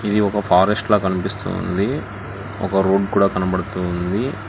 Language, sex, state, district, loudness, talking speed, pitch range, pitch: Telugu, male, Telangana, Hyderabad, -19 LUFS, 145 wpm, 95-105 Hz, 100 Hz